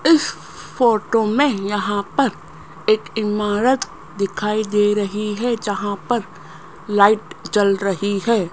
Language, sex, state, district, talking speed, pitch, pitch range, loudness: Hindi, female, Rajasthan, Jaipur, 120 wpm, 210 Hz, 200-225 Hz, -19 LUFS